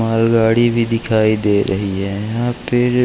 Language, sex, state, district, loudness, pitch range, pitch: Hindi, male, Uttarakhand, Uttarkashi, -16 LUFS, 105-120 Hz, 115 Hz